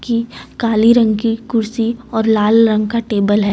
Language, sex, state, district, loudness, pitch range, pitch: Hindi, female, Chhattisgarh, Raipur, -15 LUFS, 215-230 Hz, 225 Hz